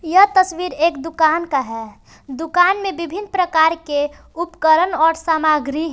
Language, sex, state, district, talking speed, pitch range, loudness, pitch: Hindi, female, Jharkhand, Palamu, 150 wpm, 310-355 Hz, -17 LUFS, 325 Hz